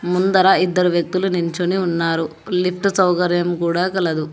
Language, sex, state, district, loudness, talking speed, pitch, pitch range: Telugu, male, Telangana, Hyderabad, -18 LUFS, 125 wpm, 180 Hz, 170-185 Hz